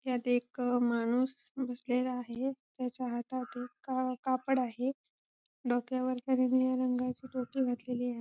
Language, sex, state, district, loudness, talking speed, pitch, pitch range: Marathi, female, Maharashtra, Sindhudurg, -34 LUFS, 130 wpm, 255 Hz, 245-260 Hz